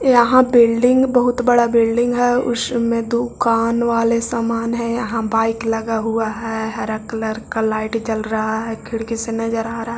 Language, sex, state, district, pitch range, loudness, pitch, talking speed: Hindi, male, Bihar, Jahanabad, 225-235 Hz, -18 LUFS, 230 Hz, 170 wpm